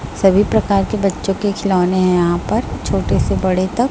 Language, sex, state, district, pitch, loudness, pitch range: Hindi, female, Chhattisgarh, Raipur, 195 Hz, -16 LUFS, 185-200 Hz